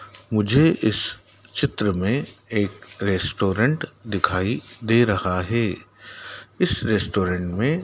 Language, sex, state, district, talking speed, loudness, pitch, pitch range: Hindi, male, Madhya Pradesh, Dhar, 105 wpm, -22 LUFS, 110 Hz, 100-120 Hz